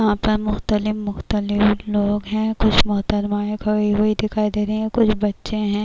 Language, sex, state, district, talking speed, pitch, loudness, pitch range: Urdu, female, Bihar, Kishanganj, 195 wpm, 210 Hz, -20 LUFS, 205-215 Hz